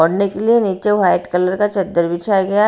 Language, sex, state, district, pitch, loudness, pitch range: Hindi, female, Bihar, Patna, 195 Hz, -16 LUFS, 180-210 Hz